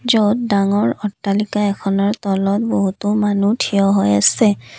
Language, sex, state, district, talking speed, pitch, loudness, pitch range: Assamese, female, Assam, Kamrup Metropolitan, 125 wpm, 205 Hz, -17 LUFS, 195-210 Hz